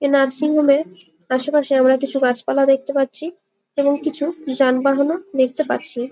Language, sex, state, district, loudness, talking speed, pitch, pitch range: Bengali, female, West Bengal, Malda, -18 LUFS, 165 wpm, 275 Hz, 260-300 Hz